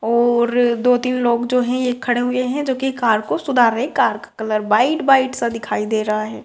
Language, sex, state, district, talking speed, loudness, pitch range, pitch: Hindi, female, Bihar, Gopalganj, 260 wpm, -18 LUFS, 230-255 Hz, 245 Hz